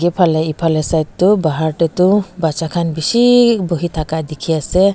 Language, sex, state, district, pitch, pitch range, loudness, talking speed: Nagamese, female, Nagaland, Dimapur, 165 Hz, 160-185 Hz, -15 LUFS, 170 wpm